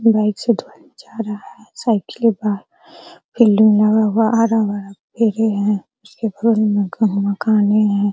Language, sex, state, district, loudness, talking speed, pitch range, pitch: Hindi, female, Bihar, Araria, -17 LUFS, 150 wpm, 205-225 Hz, 215 Hz